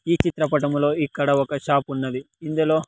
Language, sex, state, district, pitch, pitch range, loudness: Telugu, male, Andhra Pradesh, Sri Satya Sai, 145 Hz, 140-155 Hz, -22 LUFS